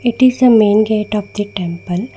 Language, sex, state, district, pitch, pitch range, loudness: English, female, Karnataka, Bangalore, 210 Hz, 205-240 Hz, -14 LUFS